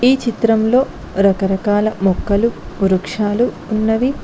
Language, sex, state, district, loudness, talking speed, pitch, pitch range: Telugu, female, Telangana, Mahabubabad, -16 LUFS, 85 wpm, 215 Hz, 195-235 Hz